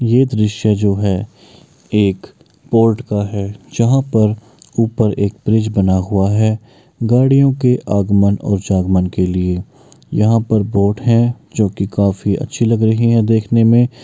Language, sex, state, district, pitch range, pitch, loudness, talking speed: Maithili, male, Bihar, Bhagalpur, 100-115 Hz, 110 Hz, -15 LUFS, 150 wpm